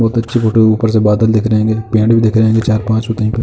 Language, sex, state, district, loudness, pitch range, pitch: Hindi, male, Uttar Pradesh, Jalaun, -12 LUFS, 110-115 Hz, 110 Hz